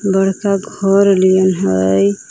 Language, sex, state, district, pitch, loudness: Magahi, female, Jharkhand, Palamu, 195 Hz, -13 LUFS